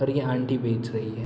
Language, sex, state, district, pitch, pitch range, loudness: Hindi, male, Bihar, Araria, 120 Hz, 115-130 Hz, -27 LUFS